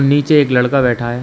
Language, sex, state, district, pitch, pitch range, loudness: Hindi, male, Uttar Pradesh, Shamli, 130 Hz, 125-145 Hz, -13 LUFS